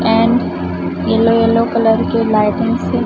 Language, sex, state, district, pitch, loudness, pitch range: Hindi, female, Chhattisgarh, Raipur, 225 Hz, -14 LUFS, 210-230 Hz